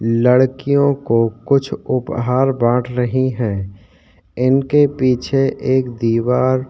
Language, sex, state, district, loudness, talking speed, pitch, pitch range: Hindi, male, Uttarakhand, Tehri Garhwal, -16 LUFS, 180 wpm, 125 Hz, 115-130 Hz